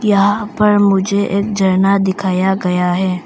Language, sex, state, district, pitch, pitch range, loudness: Hindi, female, Arunachal Pradesh, Papum Pare, 195 Hz, 190-205 Hz, -14 LUFS